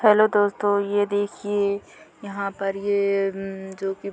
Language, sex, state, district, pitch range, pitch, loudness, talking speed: Hindi, female, Chhattisgarh, Bilaspur, 195-205 Hz, 200 Hz, -23 LUFS, 145 wpm